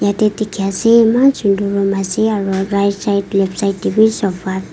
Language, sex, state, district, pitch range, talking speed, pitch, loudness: Nagamese, female, Nagaland, Kohima, 195-215 Hz, 205 wpm, 200 Hz, -15 LUFS